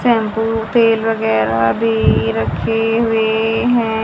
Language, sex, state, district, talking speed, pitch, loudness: Hindi, female, Haryana, Charkhi Dadri, 105 wpm, 220 Hz, -15 LUFS